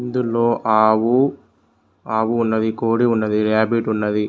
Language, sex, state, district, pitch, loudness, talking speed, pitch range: Telugu, male, Telangana, Mahabubabad, 110 Hz, -18 LUFS, 110 wpm, 110-115 Hz